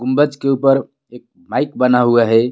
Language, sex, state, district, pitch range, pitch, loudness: Hindi, male, Jharkhand, Garhwa, 120-135 Hz, 125 Hz, -15 LUFS